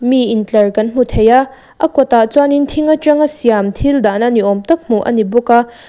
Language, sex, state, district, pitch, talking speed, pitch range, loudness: Mizo, female, Mizoram, Aizawl, 240 Hz, 225 wpm, 220-285 Hz, -12 LUFS